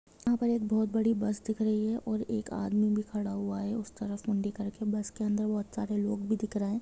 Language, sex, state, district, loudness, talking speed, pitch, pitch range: Hindi, female, Jharkhand, Jamtara, -32 LUFS, 255 wpm, 215 Hz, 210-220 Hz